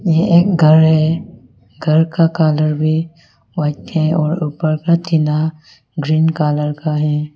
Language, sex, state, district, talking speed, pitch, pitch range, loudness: Hindi, female, Arunachal Pradesh, Lower Dibang Valley, 140 wpm, 155 Hz, 150-165 Hz, -15 LUFS